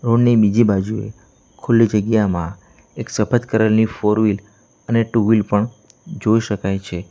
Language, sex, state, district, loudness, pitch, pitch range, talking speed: Gujarati, male, Gujarat, Valsad, -18 LUFS, 110 Hz, 105-115 Hz, 160 wpm